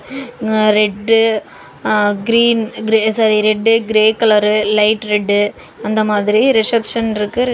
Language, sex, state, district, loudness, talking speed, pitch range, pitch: Tamil, female, Tamil Nadu, Namakkal, -14 LUFS, 110 wpm, 210-225 Hz, 215 Hz